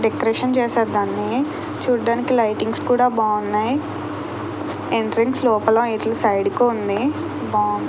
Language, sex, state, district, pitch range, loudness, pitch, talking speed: Telugu, female, Andhra Pradesh, Krishna, 215-250 Hz, -20 LUFS, 230 Hz, 90 wpm